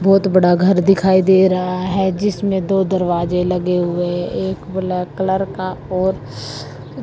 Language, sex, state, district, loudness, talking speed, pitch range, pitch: Hindi, female, Haryana, Jhajjar, -17 LUFS, 145 wpm, 175-190 Hz, 185 Hz